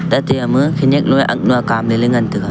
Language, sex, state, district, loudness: Wancho, male, Arunachal Pradesh, Longding, -14 LUFS